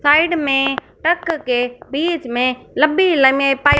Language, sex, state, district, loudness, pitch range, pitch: Hindi, female, Punjab, Fazilka, -16 LUFS, 265-325 Hz, 285 Hz